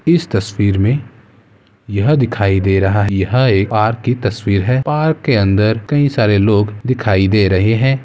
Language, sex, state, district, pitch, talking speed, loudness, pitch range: Hindi, male, Uttar Pradesh, Gorakhpur, 110 Hz, 195 wpm, -14 LUFS, 100-130 Hz